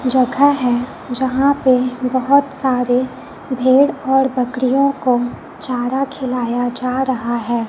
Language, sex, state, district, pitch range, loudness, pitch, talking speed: Hindi, male, Chhattisgarh, Raipur, 250-270 Hz, -17 LUFS, 255 Hz, 115 wpm